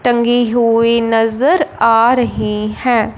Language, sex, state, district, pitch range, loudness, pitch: Hindi, male, Punjab, Fazilka, 225-240 Hz, -13 LUFS, 230 Hz